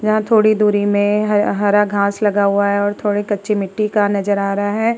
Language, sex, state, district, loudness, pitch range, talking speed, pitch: Hindi, female, Uttar Pradesh, Muzaffarnagar, -16 LUFS, 205-210 Hz, 215 wpm, 205 Hz